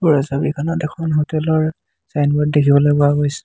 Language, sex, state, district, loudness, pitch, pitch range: Assamese, male, Assam, Hailakandi, -17 LUFS, 150 Hz, 145-155 Hz